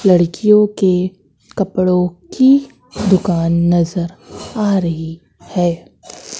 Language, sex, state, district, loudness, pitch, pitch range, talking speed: Hindi, female, Madhya Pradesh, Katni, -15 LUFS, 180 Hz, 170-200 Hz, 85 wpm